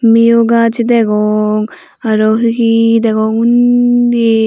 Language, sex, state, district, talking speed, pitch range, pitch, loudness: Chakma, female, Tripura, Unakoti, 105 wpm, 220-235 Hz, 230 Hz, -11 LUFS